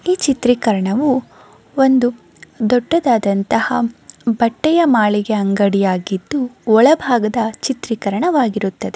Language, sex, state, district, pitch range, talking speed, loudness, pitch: Kannada, female, Karnataka, Mysore, 210-265 Hz, 60 wpm, -16 LUFS, 235 Hz